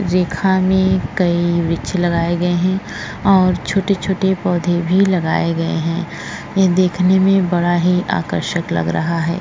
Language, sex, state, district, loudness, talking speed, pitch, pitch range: Hindi, female, Uttar Pradesh, Jyotiba Phule Nagar, -16 LUFS, 140 wpm, 180 Hz, 170-190 Hz